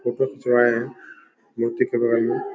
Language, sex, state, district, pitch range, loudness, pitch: Hindi, male, Bihar, Begusarai, 115-135 Hz, -21 LUFS, 120 Hz